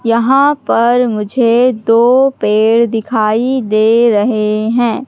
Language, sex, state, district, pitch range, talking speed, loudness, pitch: Hindi, female, Madhya Pradesh, Katni, 220-250 Hz, 105 wpm, -12 LUFS, 230 Hz